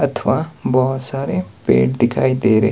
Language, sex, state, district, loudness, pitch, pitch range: Hindi, male, Himachal Pradesh, Shimla, -17 LUFS, 130 Hz, 90-135 Hz